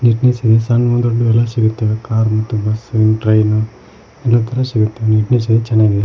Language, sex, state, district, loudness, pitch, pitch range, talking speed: Kannada, male, Karnataka, Koppal, -14 LUFS, 110 Hz, 110-120 Hz, 140 wpm